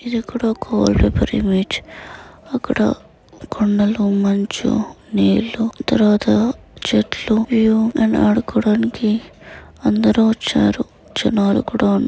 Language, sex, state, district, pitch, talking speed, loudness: Telugu, female, Andhra Pradesh, Anantapur, 210 Hz, 90 wpm, -17 LUFS